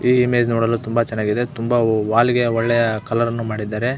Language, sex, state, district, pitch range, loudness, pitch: Kannada, male, Karnataka, Belgaum, 110-120 Hz, -19 LUFS, 115 Hz